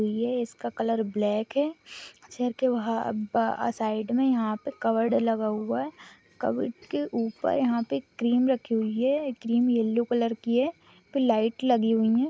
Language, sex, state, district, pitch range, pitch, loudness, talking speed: Hindi, female, West Bengal, Dakshin Dinajpur, 225-250 Hz, 230 Hz, -27 LUFS, 170 wpm